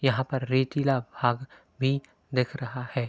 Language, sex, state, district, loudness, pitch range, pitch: Hindi, male, Uttar Pradesh, Hamirpur, -28 LUFS, 125-135 Hz, 130 Hz